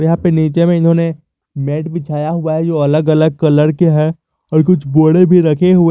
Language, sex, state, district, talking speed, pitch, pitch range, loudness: Hindi, male, Jharkhand, Garhwa, 215 wpm, 160 Hz, 155-170 Hz, -13 LUFS